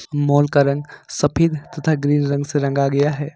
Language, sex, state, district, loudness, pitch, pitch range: Hindi, male, Jharkhand, Ranchi, -18 LUFS, 145 Hz, 140-150 Hz